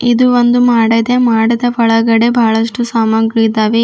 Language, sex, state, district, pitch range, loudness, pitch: Kannada, female, Karnataka, Bidar, 225-240 Hz, -11 LUFS, 230 Hz